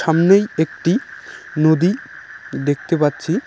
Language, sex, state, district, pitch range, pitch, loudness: Bengali, male, West Bengal, Cooch Behar, 155-180 Hz, 160 Hz, -18 LUFS